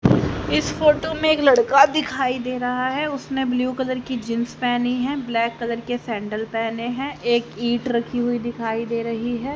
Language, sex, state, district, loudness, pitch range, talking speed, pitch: Hindi, female, Haryana, Jhajjar, -22 LUFS, 235-265 Hz, 190 wpm, 245 Hz